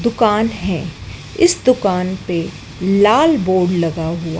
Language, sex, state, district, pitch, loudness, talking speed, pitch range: Hindi, female, Madhya Pradesh, Dhar, 185 Hz, -16 LUFS, 120 wpm, 170-220 Hz